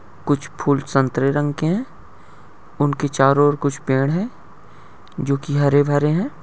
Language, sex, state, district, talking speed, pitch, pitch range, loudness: Hindi, male, Uttar Pradesh, Budaun, 150 wpm, 145 Hz, 140-150 Hz, -19 LUFS